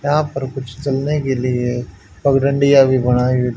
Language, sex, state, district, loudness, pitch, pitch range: Hindi, male, Haryana, Charkhi Dadri, -17 LUFS, 135 Hz, 125-140 Hz